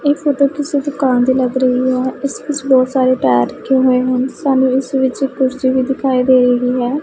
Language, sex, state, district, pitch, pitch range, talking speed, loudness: Punjabi, female, Punjab, Pathankot, 260 Hz, 255-275 Hz, 220 wpm, -15 LUFS